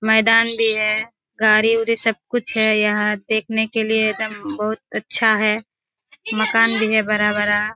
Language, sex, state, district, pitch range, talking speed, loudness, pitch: Hindi, female, Bihar, Kishanganj, 215-225 Hz, 170 wpm, -18 LUFS, 220 Hz